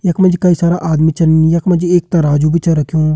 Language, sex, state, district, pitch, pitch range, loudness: Hindi, male, Uttarakhand, Uttarkashi, 165 Hz, 160-175 Hz, -12 LUFS